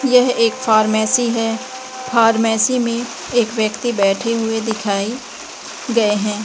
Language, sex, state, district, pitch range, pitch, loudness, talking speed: Hindi, female, Chhattisgarh, Bilaspur, 215-245 Hz, 230 Hz, -17 LUFS, 120 wpm